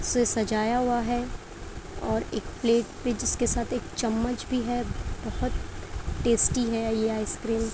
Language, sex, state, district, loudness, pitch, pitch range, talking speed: Hindi, female, Uttar Pradesh, Jyotiba Phule Nagar, -27 LUFS, 235 Hz, 225-245 Hz, 155 wpm